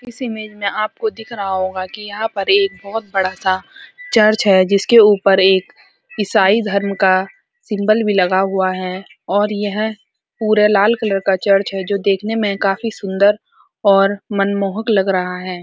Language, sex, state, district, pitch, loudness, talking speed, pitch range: Hindi, female, Uttarakhand, Uttarkashi, 200 Hz, -16 LUFS, 175 wpm, 195-215 Hz